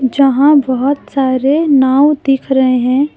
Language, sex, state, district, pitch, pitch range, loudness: Hindi, female, Jharkhand, Deoghar, 270 Hz, 260-285 Hz, -12 LUFS